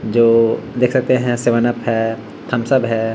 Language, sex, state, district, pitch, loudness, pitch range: Hindi, male, Bihar, Vaishali, 115 Hz, -16 LUFS, 115-125 Hz